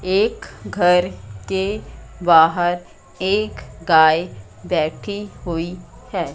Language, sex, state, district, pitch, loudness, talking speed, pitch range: Hindi, female, Madhya Pradesh, Katni, 175 Hz, -19 LUFS, 85 wpm, 160-190 Hz